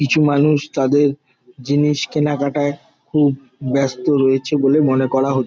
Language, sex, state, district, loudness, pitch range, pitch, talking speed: Bengali, male, West Bengal, Jalpaiguri, -17 LUFS, 135-145 Hz, 140 Hz, 140 wpm